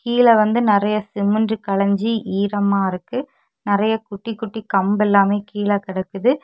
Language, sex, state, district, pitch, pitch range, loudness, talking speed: Tamil, female, Tamil Nadu, Kanyakumari, 205 Hz, 200-220 Hz, -19 LUFS, 130 wpm